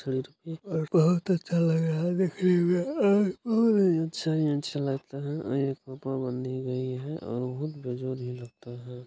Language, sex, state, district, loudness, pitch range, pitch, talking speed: Hindi, male, Bihar, Jahanabad, -28 LUFS, 130-170 Hz, 150 Hz, 120 wpm